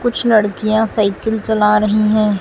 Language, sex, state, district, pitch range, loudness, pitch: Hindi, female, Chhattisgarh, Raipur, 210-220 Hz, -15 LUFS, 215 Hz